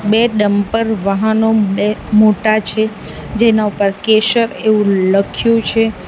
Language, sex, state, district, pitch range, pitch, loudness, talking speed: Gujarati, female, Gujarat, Valsad, 205-225 Hz, 215 Hz, -14 LUFS, 120 wpm